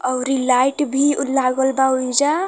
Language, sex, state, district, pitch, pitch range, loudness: Bhojpuri, female, Uttar Pradesh, Varanasi, 265 Hz, 255-280 Hz, -18 LUFS